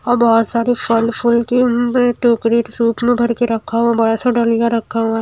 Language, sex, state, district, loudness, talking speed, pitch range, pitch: Hindi, female, Himachal Pradesh, Shimla, -15 LUFS, 220 wpm, 230-240 Hz, 235 Hz